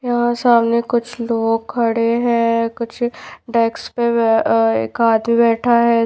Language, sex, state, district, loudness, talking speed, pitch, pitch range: Hindi, female, Bihar, Patna, -17 LUFS, 130 wpm, 235 Hz, 230-240 Hz